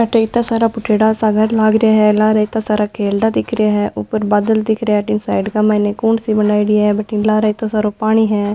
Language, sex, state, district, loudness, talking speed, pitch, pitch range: Marwari, female, Rajasthan, Nagaur, -15 LUFS, 240 wpm, 215 Hz, 210-220 Hz